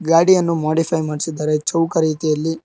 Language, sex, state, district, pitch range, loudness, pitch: Kannada, male, Karnataka, Koppal, 155-165 Hz, -18 LUFS, 160 Hz